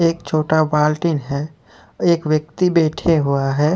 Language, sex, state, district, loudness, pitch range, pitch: Hindi, male, Jharkhand, Deoghar, -18 LUFS, 150-165 Hz, 155 Hz